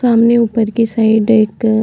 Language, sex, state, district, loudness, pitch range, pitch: Hindi, female, Uttarakhand, Tehri Garhwal, -12 LUFS, 220-230 Hz, 225 Hz